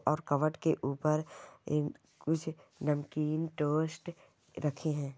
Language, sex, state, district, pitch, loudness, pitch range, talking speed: Hindi, female, Bihar, Jamui, 155 Hz, -34 LUFS, 145-160 Hz, 115 wpm